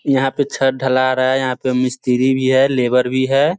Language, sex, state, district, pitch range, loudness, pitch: Hindi, male, Bihar, Sitamarhi, 130-135 Hz, -16 LUFS, 130 Hz